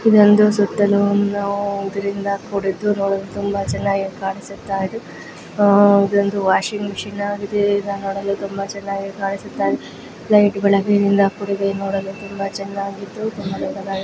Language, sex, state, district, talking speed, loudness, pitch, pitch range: Kannada, female, Karnataka, Raichur, 65 wpm, -19 LUFS, 200 Hz, 195-205 Hz